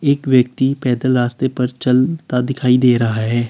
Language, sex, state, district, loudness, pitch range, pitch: Hindi, male, Uttar Pradesh, Lalitpur, -16 LUFS, 125-130 Hz, 125 Hz